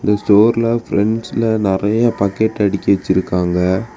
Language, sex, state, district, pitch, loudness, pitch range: Tamil, male, Tamil Nadu, Kanyakumari, 105 Hz, -15 LUFS, 95-110 Hz